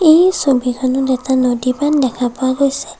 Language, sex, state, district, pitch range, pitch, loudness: Assamese, female, Assam, Kamrup Metropolitan, 255-280 Hz, 260 Hz, -15 LUFS